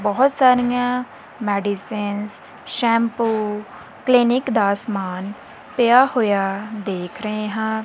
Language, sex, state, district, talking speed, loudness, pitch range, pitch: Punjabi, female, Punjab, Kapurthala, 90 wpm, -20 LUFS, 205-245 Hz, 215 Hz